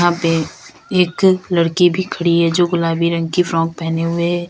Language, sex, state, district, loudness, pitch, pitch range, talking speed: Hindi, female, Uttar Pradesh, Lalitpur, -16 LUFS, 170 Hz, 165-180 Hz, 200 wpm